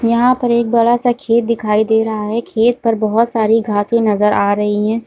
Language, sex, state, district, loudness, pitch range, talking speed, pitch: Hindi, female, Bihar, Supaul, -14 LUFS, 215-235 Hz, 235 wpm, 225 Hz